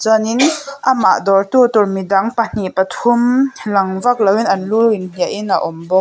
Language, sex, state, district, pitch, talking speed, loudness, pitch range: Mizo, female, Mizoram, Aizawl, 215 Hz, 210 wpm, -15 LUFS, 195-240 Hz